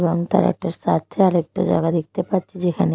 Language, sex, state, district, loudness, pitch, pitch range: Bengali, female, Odisha, Malkangiri, -20 LUFS, 175 Hz, 165-185 Hz